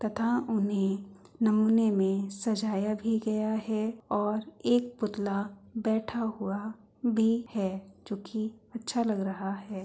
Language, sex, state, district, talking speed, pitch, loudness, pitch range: Hindi, female, Uttar Pradesh, Muzaffarnagar, 130 wpm, 215 Hz, -30 LUFS, 200-225 Hz